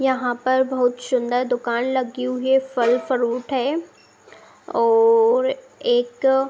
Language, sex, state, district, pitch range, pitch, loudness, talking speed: Hindi, female, Uttar Pradesh, Budaun, 245-330 Hz, 260 Hz, -20 LUFS, 130 wpm